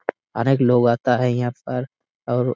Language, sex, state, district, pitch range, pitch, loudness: Hindi, male, Jharkhand, Sahebganj, 120-125 Hz, 125 Hz, -20 LUFS